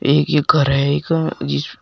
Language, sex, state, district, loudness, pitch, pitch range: Hindi, male, Uttar Pradesh, Shamli, -17 LUFS, 145 Hz, 140-150 Hz